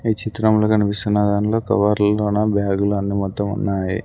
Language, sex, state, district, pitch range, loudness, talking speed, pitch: Telugu, male, Andhra Pradesh, Sri Satya Sai, 100-110 Hz, -19 LUFS, 135 wpm, 105 Hz